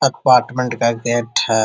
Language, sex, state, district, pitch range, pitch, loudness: Hindi, male, Bihar, Jahanabad, 115-125 Hz, 120 Hz, -17 LUFS